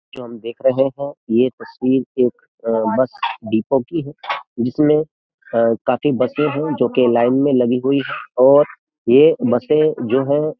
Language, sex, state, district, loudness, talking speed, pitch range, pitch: Hindi, male, Uttar Pradesh, Jyotiba Phule Nagar, -17 LUFS, 165 wpm, 120-145 Hz, 130 Hz